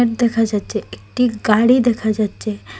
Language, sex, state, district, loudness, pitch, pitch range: Bengali, female, Assam, Hailakandi, -17 LUFS, 225 Hz, 215-240 Hz